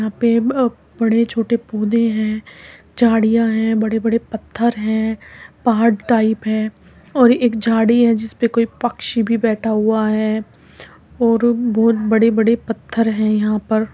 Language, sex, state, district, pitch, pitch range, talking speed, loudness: Hindi, female, Uttar Pradesh, Muzaffarnagar, 225 Hz, 220-230 Hz, 145 wpm, -17 LUFS